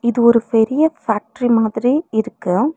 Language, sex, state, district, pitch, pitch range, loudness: Tamil, female, Tamil Nadu, Nilgiris, 235 Hz, 220-255 Hz, -17 LUFS